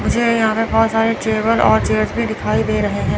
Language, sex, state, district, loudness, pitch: Hindi, female, Chandigarh, Chandigarh, -16 LUFS, 225 Hz